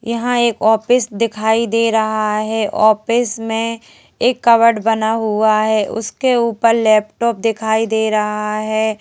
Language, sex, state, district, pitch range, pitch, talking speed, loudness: Hindi, female, Madhya Pradesh, Bhopal, 215-230 Hz, 225 Hz, 140 wpm, -15 LUFS